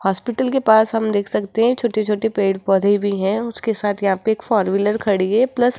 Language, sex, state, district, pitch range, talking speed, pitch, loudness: Hindi, female, Rajasthan, Jaipur, 200-230 Hz, 230 wpm, 215 Hz, -18 LUFS